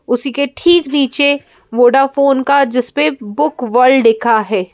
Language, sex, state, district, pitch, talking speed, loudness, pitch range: Hindi, female, Madhya Pradesh, Bhopal, 265 Hz, 150 wpm, -13 LUFS, 240-280 Hz